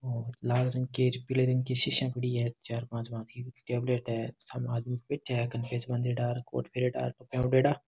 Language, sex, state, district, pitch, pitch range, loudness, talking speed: Marwari, male, Rajasthan, Nagaur, 125 Hz, 120-125 Hz, -31 LUFS, 195 wpm